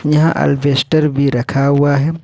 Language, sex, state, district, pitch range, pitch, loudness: Hindi, male, Jharkhand, Ranchi, 140-155 Hz, 145 Hz, -14 LUFS